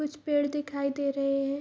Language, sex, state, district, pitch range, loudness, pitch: Hindi, female, Bihar, Araria, 275-295 Hz, -29 LUFS, 285 Hz